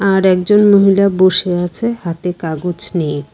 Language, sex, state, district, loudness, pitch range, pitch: Bengali, female, West Bengal, Cooch Behar, -13 LUFS, 170-195 Hz, 180 Hz